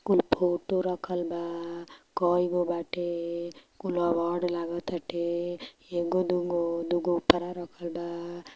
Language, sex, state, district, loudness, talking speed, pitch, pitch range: Hindi, male, Uttar Pradesh, Varanasi, -29 LUFS, 145 wpm, 175 Hz, 170-180 Hz